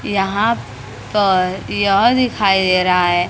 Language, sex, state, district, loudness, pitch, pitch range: Hindi, female, Maharashtra, Mumbai Suburban, -16 LUFS, 190 Hz, 180-205 Hz